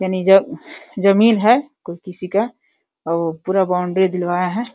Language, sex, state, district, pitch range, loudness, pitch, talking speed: Hindi, female, Uttar Pradesh, Deoria, 180-230 Hz, -17 LUFS, 190 Hz, 150 wpm